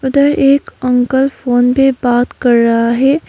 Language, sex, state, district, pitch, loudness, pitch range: Hindi, female, West Bengal, Darjeeling, 260 Hz, -12 LUFS, 245-275 Hz